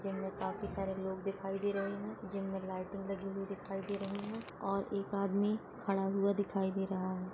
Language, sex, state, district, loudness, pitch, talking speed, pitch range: Hindi, female, Uttar Pradesh, Ghazipur, -38 LUFS, 195 Hz, 220 wpm, 195-200 Hz